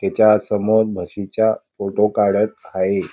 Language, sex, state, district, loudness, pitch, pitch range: Marathi, male, Karnataka, Belgaum, -18 LUFS, 105 Hz, 100-110 Hz